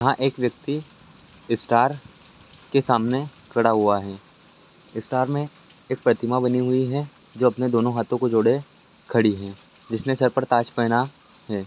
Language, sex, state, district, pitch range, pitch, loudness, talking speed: Angika, male, Bihar, Madhepura, 115-135 Hz, 125 Hz, -23 LUFS, 155 wpm